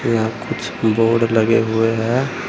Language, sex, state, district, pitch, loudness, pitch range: Hindi, male, Uttar Pradesh, Saharanpur, 115 Hz, -17 LUFS, 110-115 Hz